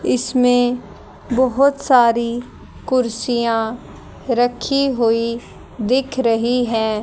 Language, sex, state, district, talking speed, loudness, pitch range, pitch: Hindi, female, Haryana, Rohtak, 75 wpm, -18 LUFS, 230-255 Hz, 245 Hz